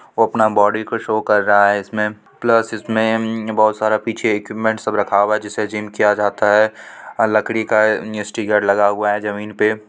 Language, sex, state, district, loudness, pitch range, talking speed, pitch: Hindi, female, Bihar, Supaul, -17 LUFS, 105-110 Hz, 205 wpm, 110 Hz